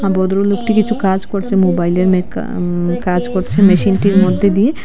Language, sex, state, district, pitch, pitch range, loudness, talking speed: Bengali, female, Assam, Hailakandi, 190 Hz, 185-200 Hz, -14 LUFS, 160 wpm